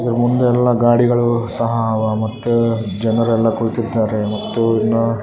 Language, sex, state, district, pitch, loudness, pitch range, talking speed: Kannada, male, Karnataka, Raichur, 115 Hz, -17 LUFS, 110-120 Hz, 125 wpm